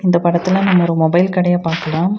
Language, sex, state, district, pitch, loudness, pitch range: Tamil, female, Tamil Nadu, Nilgiris, 175 Hz, -15 LUFS, 165-185 Hz